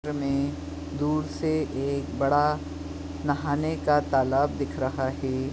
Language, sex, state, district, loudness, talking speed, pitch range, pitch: Hindi, male, Chhattisgarh, Bastar, -27 LUFS, 140 wpm, 130-150 Hz, 140 Hz